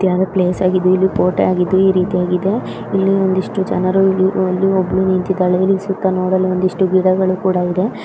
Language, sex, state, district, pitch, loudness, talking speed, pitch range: Kannada, female, Karnataka, Chamarajanagar, 185 Hz, -15 LUFS, 150 wpm, 185-190 Hz